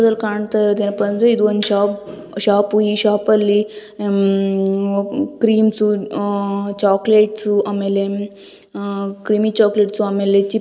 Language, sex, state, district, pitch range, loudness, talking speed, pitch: Kannada, female, Karnataka, Gulbarga, 200-210 Hz, -17 LUFS, 115 wpm, 205 Hz